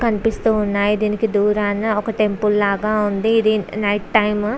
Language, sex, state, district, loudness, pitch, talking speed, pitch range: Telugu, female, Andhra Pradesh, Visakhapatnam, -18 LUFS, 210 Hz, 145 wpm, 205-220 Hz